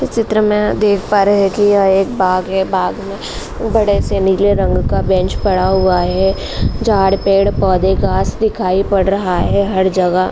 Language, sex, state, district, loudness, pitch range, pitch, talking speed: Hindi, female, Uttar Pradesh, Jalaun, -14 LUFS, 190-205 Hz, 195 Hz, 190 wpm